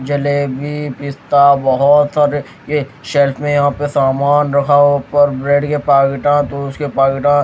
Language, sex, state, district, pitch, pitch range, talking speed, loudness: Hindi, male, Himachal Pradesh, Shimla, 145 Hz, 140-145 Hz, 155 wpm, -14 LUFS